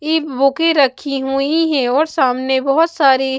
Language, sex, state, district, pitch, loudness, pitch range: Hindi, female, Bihar, West Champaran, 275 Hz, -15 LUFS, 265-315 Hz